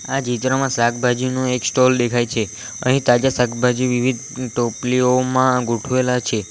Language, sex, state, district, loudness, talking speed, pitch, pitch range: Gujarati, male, Gujarat, Valsad, -18 LUFS, 130 wpm, 125 Hz, 120-130 Hz